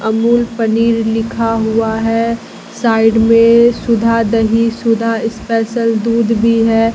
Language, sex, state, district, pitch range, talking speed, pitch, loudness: Hindi, female, Bihar, Katihar, 225-230 Hz, 120 wpm, 230 Hz, -13 LUFS